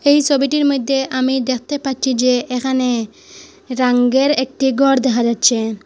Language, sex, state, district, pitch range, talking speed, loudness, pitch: Bengali, female, Assam, Hailakandi, 250-275 Hz, 135 wpm, -16 LUFS, 260 Hz